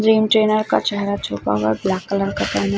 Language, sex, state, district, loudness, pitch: Hindi, male, Chhattisgarh, Raipur, -19 LUFS, 195 Hz